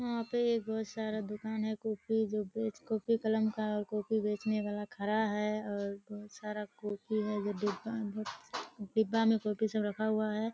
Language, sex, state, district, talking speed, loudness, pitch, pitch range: Hindi, female, Bihar, Kishanganj, 180 wpm, -35 LUFS, 215 Hz, 210-220 Hz